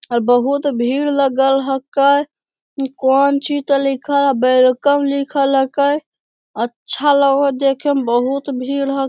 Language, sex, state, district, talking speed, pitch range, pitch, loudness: Hindi, male, Bihar, Jamui, 145 wpm, 265-280 Hz, 275 Hz, -16 LUFS